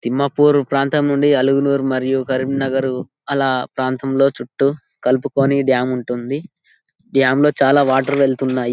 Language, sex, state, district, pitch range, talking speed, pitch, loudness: Telugu, male, Telangana, Karimnagar, 130-140 Hz, 115 wpm, 135 Hz, -17 LUFS